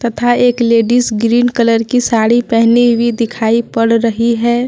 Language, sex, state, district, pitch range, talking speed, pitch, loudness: Hindi, female, Jharkhand, Deoghar, 230-240 Hz, 165 wpm, 235 Hz, -12 LUFS